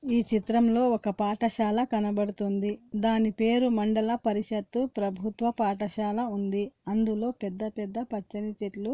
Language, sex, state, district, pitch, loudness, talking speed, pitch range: Telugu, female, Andhra Pradesh, Anantapur, 215 Hz, -28 LUFS, 115 wpm, 205-235 Hz